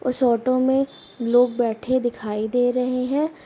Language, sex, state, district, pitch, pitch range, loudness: Hindi, female, Uttar Pradesh, Muzaffarnagar, 250 Hz, 240-255 Hz, -21 LUFS